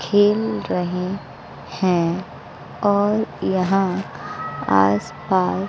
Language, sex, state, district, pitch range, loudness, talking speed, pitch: Hindi, female, Bihar, West Champaran, 145-195 Hz, -21 LUFS, 75 wpm, 185 Hz